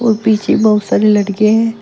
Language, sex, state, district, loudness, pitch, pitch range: Hindi, female, Uttar Pradesh, Shamli, -12 LUFS, 215 Hz, 210-225 Hz